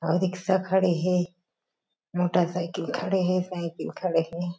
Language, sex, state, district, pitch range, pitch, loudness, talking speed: Chhattisgarhi, female, Chhattisgarh, Jashpur, 175-185 Hz, 180 Hz, -26 LUFS, 130 wpm